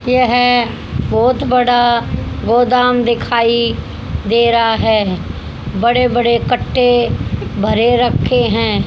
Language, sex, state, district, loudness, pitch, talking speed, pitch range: Hindi, female, Haryana, Jhajjar, -14 LUFS, 240 Hz, 95 wpm, 235-245 Hz